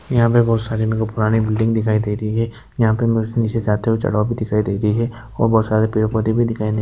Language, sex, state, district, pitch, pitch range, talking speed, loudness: Hindi, male, Uttar Pradesh, Hamirpur, 110 Hz, 110-115 Hz, 275 wpm, -18 LUFS